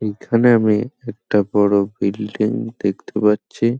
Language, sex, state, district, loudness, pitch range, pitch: Bengali, male, West Bengal, Malda, -18 LUFS, 105-115 Hz, 105 Hz